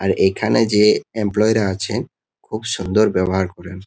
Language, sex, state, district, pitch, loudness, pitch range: Bengali, male, West Bengal, Kolkata, 105 Hz, -18 LUFS, 95-110 Hz